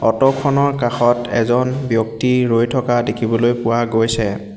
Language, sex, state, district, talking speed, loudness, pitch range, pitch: Assamese, male, Assam, Hailakandi, 130 wpm, -17 LUFS, 115-125 Hz, 120 Hz